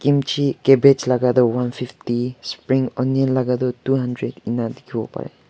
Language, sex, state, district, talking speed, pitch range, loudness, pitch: Nagamese, male, Nagaland, Kohima, 175 wpm, 125-135 Hz, -19 LUFS, 125 Hz